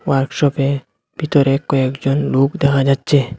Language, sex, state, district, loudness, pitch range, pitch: Bengali, male, Assam, Hailakandi, -16 LUFS, 135-145 Hz, 140 Hz